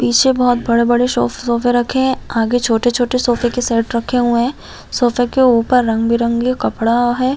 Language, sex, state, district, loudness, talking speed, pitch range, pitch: Hindi, female, Chhattisgarh, Raigarh, -15 LUFS, 185 wpm, 235-250 Hz, 245 Hz